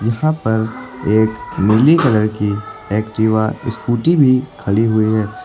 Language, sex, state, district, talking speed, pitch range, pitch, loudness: Hindi, male, Uttar Pradesh, Lucknow, 130 wpm, 110-120 Hz, 110 Hz, -16 LUFS